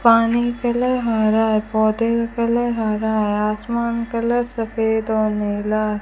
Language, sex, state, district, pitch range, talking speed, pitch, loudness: Hindi, female, Rajasthan, Bikaner, 215-235 Hz, 160 wpm, 225 Hz, -19 LUFS